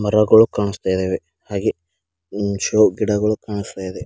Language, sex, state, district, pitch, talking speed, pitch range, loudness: Kannada, male, Karnataka, Bidar, 105 Hz, 145 wpm, 95-105 Hz, -19 LUFS